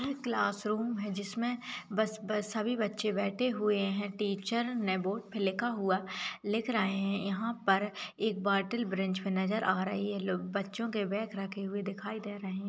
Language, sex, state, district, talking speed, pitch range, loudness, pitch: Hindi, female, Bihar, Begusarai, 195 wpm, 195-220 Hz, -33 LUFS, 205 Hz